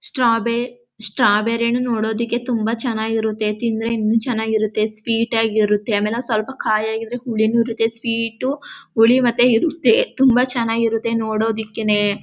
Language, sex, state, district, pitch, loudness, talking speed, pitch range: Kannada, female, Karnataka, Mysore, 230 Hz, -19 LUFS, 130 wpm, 220-240 Hz